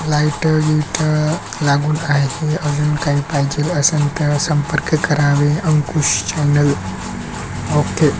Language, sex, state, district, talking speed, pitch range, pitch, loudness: Marathi, male, Maharashtra, Chandrapur, 110 wpm, 145-155 Hz, 150 Hz, -17 LUFS